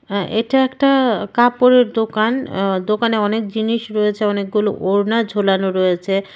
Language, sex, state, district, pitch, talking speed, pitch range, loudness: Bengali, female, Tripura, West Tripura, 215 Hz, 140 wpm, 200-230 Hz, -17 LUFS